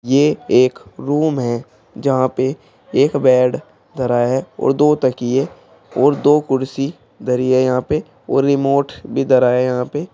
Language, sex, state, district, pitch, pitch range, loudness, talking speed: Hindi, male, Uttar Pradesh, Shamli, 135 Hz, 125-140 Hz, -17 LUFS, 160 wpm